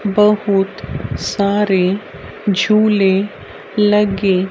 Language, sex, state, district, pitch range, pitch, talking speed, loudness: Hindi, female, Haryana, Rohtak, 195-210 Hz, 200 Hz, 55 wpm, -16 LUFS